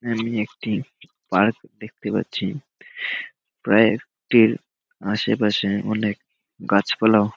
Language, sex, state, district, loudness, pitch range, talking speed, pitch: Bengali, male, West Bengal, Malda, -22 LUFS, 105-115 Hz, 80 wpm, 110 Hz